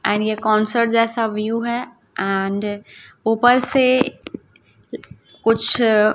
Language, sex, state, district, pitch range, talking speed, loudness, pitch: Hindi, female, Chhattisgarh, Raipur, 215-235 Hz, 105 wpm, -18 LUFS, 225 Hz